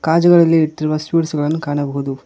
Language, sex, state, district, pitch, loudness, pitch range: Kannada, male, Karnataka, Koppal, 155 Hz, -16 LUFS, 145-165 Hz